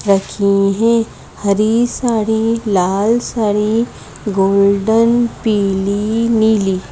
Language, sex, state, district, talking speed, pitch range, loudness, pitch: Hindi, female, Madhya Pradesh, Bhopal, 80 wpm, 200-230 Hz, -15 LUFS, 215 Hz